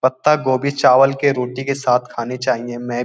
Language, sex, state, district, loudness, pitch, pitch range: Hindi, male, Uttar Pradesh, Jyotiba Phule Nagar, -17 LUFS, 130 Hz, 125-135 Hz